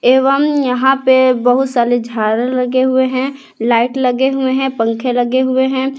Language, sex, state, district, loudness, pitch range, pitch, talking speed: Hindi, female, Jharkhand, Palamu, -14 LUFS, 245-265 Hz, 260 Hz, 170 wpm